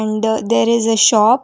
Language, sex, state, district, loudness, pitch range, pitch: English, female, Karnataka, Bangalore, -14 LUFS, 215-225 Hz, 220 Hz